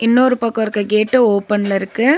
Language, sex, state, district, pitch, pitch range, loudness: Tamil, female, Tamil Nadu, Nilgiris, 220 Hz, 205-245 Hz, -16 LUFS